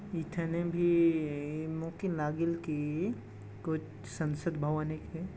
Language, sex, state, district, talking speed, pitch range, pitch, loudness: Chhattisgarhi, male, Chhattisgarh, Jashpur, 110 wpm, 150-170 Hz, 160 Hz, -34 LUFS